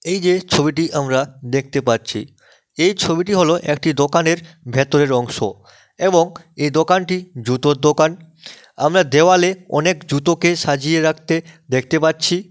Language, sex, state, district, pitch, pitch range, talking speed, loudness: Bengali, male, West Bengal, Malda, 160 Hz, 145-175 Hz, 125 wpm, -17 LUFS